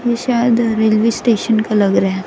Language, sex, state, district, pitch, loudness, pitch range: Hindi, female, Chhattisgarh, Raipur, 225 Hz, -15 LUFS, 215-235 Hz